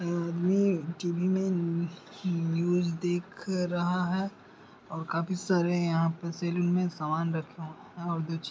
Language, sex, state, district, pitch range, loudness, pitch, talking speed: Hindi, male, Bihar, Bhagalpur, 165-180 Hz, -30 LUFS, 175 Hz, 170 wpm